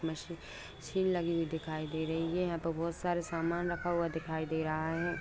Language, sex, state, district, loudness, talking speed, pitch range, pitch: Hindi, female, Bihar, East Champaran, -35 LUFS, 205 wpm, 160-170 Hz, 165 Hz